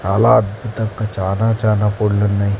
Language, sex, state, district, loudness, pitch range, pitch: Telugu, male, Andhra Pradesh, Sri Satya Sai, -17 LUFS, 100-110 Hz, 105 Hz